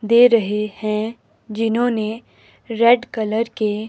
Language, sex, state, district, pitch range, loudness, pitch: Hindi, female, Himachal Pradesh, Shimla, 215-235 Hz, -19 LUFS, 225 Hz